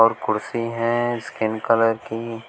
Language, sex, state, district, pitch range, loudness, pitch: Hindi, male, Uttar Pradesh, Shamli, 110-115 Hz, -22 LUFS, 115 Hz